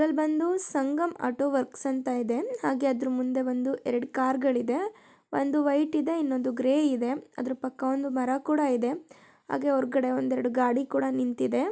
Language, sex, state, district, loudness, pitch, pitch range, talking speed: Kannada, male, Karnataka, Shimoga, -28 LUFS, 265 Hz, 255-285 Hz, 170 wpm